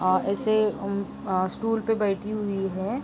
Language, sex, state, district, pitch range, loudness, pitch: Hindi, female, Uttar Pradesh, Jalaun, 195-215 Hz, -26 LUFS, 200 Hz